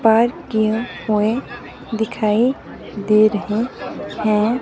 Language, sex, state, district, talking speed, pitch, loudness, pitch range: Hindi, female, Himachal Pradesh, Shimla, 90 wpm, 220 Hz, -19 LUFS, 210-235 Hz